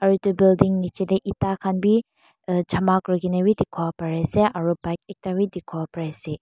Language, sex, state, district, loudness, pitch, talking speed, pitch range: Nagamese, female, Mizoram, Aizawl, -23 LUFS, 185 Hz, 195 wpm, 170-195 Hz